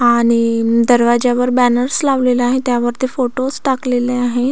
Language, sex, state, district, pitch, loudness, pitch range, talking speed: Marathi, female, Maharashtra, Solapur, 245 Hz, -15 LUFS, 240-255 Hz, 145 wpm